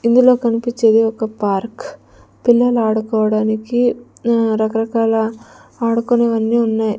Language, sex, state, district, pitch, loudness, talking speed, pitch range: Telugu, female, Andhra Pradesh, Sri Satya Sai, 230 Hz, -16 LUFS, 85 wpm, 220-235 Hz